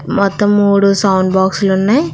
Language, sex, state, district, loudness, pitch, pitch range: Telugu, female, Telangana, Hyderabad, -12 LUFS, 200 Hz, 190-205 Hz